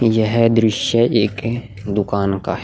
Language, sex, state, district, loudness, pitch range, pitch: Hindi, male, Goa, North and South Goa, -17 LUFS, 100-115 Hz, 110 Hz